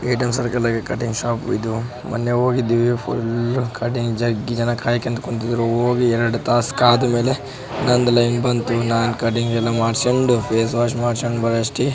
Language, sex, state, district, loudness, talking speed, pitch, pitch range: Kannada, male, Karnataka, Raichur, -19 LUFS, 135 wpm, 120 Hz, 115-120 Hz